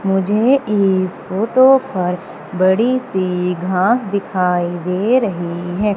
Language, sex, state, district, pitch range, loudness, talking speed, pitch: Hindi, female, Madhya Pradesh, Umaria, 180-220 Hz, -16 LUFS, 110 wpm, 190 Hz